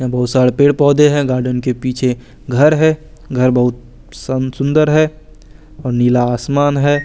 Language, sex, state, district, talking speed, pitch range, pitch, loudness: Hindi, male, Chandigarh, Chandigarh, 155 wpm, 125-145 Hz, 130 Hz, -14 LUFS